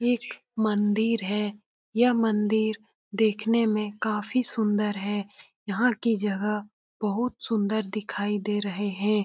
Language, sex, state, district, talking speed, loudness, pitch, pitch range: Hindi, female, Bihar, Jamui, 125 wpm, -27 LUFS, 210 Hz, 205-225 Hz